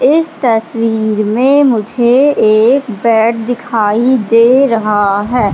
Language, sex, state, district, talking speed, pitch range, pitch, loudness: Hindi, female, Madhya Pradesh, Katni, 110 wpm, 220-255 Hz, 230 Hz, -11 LUFS